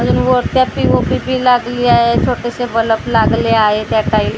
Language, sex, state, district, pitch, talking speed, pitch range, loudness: Marathi, female, Maharashtra, Gondia, 235 Hz, 190 wpm, 215-245 Hz, -13 LUFS